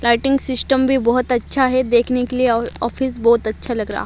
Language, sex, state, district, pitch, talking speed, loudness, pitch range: Hindi, female, Odisha, Malkangiri, 245 Hz, 220 wpm, -16 LUFS, 235-260 Hz